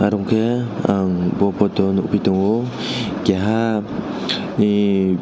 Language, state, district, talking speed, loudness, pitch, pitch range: Kokborok, Tripura, West Tripura, 105 wpm, -19 LUFS, 100 Hz, 95-110 Hz